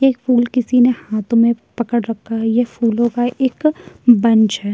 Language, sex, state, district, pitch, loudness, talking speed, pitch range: Hindi, female, Uttar Pradesh, Jyotiba Phule Nagar, 240 Hz, -16 LUFS, 190 wpm, 225-250 Hz